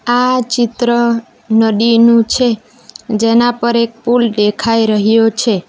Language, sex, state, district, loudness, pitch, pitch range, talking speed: Gujarati, female, Gujarat, Valsad, -12 LUFS, 230 Hz, 225-240 Hz, 115 wpm